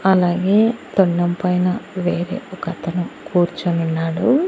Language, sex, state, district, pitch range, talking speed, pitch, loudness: Telugu, female, Andhra Pradesh, Annamaya, 175-190 Hz, 80 wpm, 180 Hz, -19 LUFS